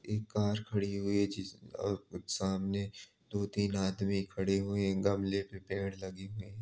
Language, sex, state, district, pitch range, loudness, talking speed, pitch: Hindi, male, Uttar Pradesh, Jalaun, 95-100 Hz, -35 LUFS, 170 wpm, 100 Hz